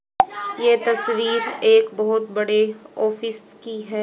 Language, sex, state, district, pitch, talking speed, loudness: Hindi, female, Haryana, Rohtak, 225 Hz, 120 wpm, -20 LUFS